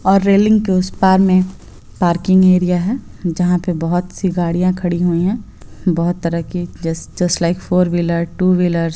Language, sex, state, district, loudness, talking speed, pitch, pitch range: Hindi, female, Bihar, Purnia, -16 LUFS, 195 wpm, 180 Hz, 170-185 Hz